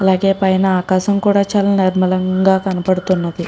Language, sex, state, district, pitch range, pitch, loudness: Telugu, female, Andhra Pradesh, Srikakulam, 185-195 Hz, 190 Hz, -15 LUFS